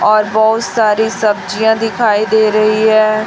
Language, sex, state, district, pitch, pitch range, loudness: Hindi, female, Chhattisgarh, Raipur, 215 Hz, 215-220 Hz, -12 LUFS